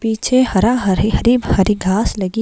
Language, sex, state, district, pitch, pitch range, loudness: Hindi, female, Himachal Pradesh, Shimla, 215 Hz, 190-240 Hz, -15 LUFS